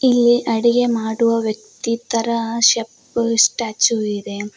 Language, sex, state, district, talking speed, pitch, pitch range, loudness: Kannada, female, Karnataka, Koppal, 105 wpm, 230 Hz, 220-235 Hz, -18 LUFS